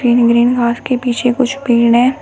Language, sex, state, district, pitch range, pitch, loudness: Hindi, female, Uttar Pradesh, Shamli, 235-255 Hz, 245 Hz, -13 LUFS